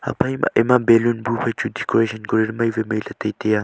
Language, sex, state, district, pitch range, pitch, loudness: Wancho, male, Arunachal Pradesh, Longding, 110-120 Hz, 115 Hz, -20 LUFS